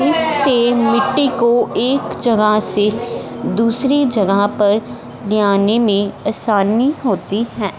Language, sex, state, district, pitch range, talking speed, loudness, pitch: Hindi, female, Punjab, Fazilka, 205-250 Hz, 115 wpm, -15 LUFS, 230 Hz